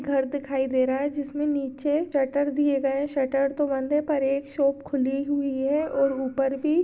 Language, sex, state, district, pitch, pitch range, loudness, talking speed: Hindi, female, Maharashtra, Aurangabad, 275 Hz, 270-290 Hz, -25 LUFS, 200 wpm